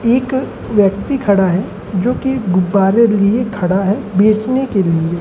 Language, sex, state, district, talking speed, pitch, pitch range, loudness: Hindi, male, Madhya Pradesh, Umaria, 150 wpm, 205 Hz, 190-240 Hz, -15 LUFS